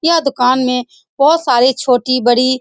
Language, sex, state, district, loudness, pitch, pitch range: Hindi, female, Bihar, Saran, -13 LUFS, 255 Hz, 250-275 Hz